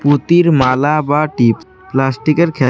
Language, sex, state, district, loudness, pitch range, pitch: Bengali, male, West Bengal, Alipurduar, -13 LUFS, 130-155 Hz, 145 Hz